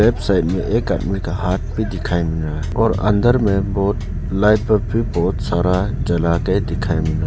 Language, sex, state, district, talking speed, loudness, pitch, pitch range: Hindi, male, Arunachal Pradesh, Lower Dibang Valley, 205 wpm, -18 LUFS, 95 Hz, 85-105 Hz